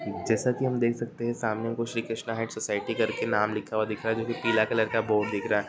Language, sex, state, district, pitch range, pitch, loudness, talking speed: Hindi, male, Chhattisgarh, Korba, 110-115 Hz, 115 Hz, -28 LUFS, 315 wpm